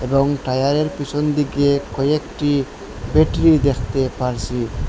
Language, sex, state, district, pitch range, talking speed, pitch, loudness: Bengali, male, Assam, Hailakandi, 130-145 Hz, 100 wpm, 140 Hz, -19 LUFS